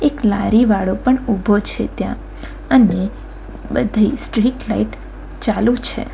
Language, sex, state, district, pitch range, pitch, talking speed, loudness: Gujarati, female, Gujarat, Valsad, 210-245 Hz, 220 Hz, 105 wpm, -17 LUFS